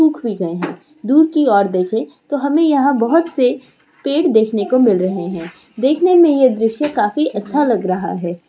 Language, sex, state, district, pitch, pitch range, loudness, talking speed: Hindi, female, Uttar Pradesh, Muzaffarnagar, 250 Hz, 200-295 Hz, -15 LUFS, 200 wpm